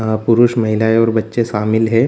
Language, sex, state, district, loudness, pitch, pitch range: Hindi, male, Bihar, Jamui, -14 LUFS, 115 Hz, 110-115 Hz